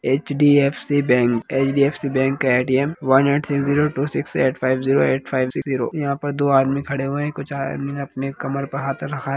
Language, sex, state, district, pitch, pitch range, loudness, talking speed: Hindi, male, Bihar, Jahanabad, 140 Hz, 135-140 Hz, -20 LUFS, 225 wpm